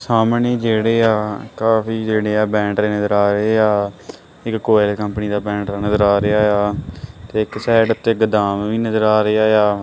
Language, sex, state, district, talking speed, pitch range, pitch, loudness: Punjabi, male, Punjab, Kapurthala, 175 wpm, 105-110 Hz, 105 Hz, -17 LUFS